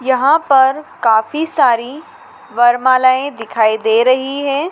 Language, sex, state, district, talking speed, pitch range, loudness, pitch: Hindi, female, Madhya Pradesh, Dhar, 115 wpm, 235-285 Hz, -13 LUFS, 260 Hz